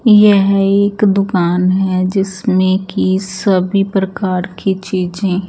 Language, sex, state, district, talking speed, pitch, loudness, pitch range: Hindi, female, Chandigarh, Chandigarh, 120 wpm, 190 Hz, -14 LUFS, 185-200 Hz